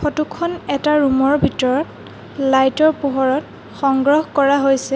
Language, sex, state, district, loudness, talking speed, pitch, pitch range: Assamese, female, Assam, Sonitpur, -17 LUFS, 145 wpm, 280 Hz, 270-300 Hz